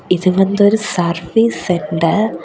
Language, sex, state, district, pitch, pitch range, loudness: Tamil, female, Tamil Nadu, Kanyakumari, 185 Hz, 170-210 Hz, -15 LUFS